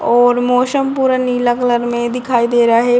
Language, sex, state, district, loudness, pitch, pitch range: Hindi, female, Bihar, Jamui, -14 LUFS, 245 Hz, 240-250 Hz